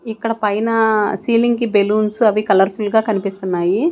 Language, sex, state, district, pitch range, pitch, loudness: Telugu, female, Andhra Pradesh, Sri Satya Sai, 205-230 Hz, 215 Hz, -16 LUFS